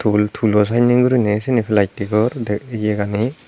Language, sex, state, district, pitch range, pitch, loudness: Chakma, male, Tripura, Dhalai, 105-120 Hz, 110 Hz, -17 LUFS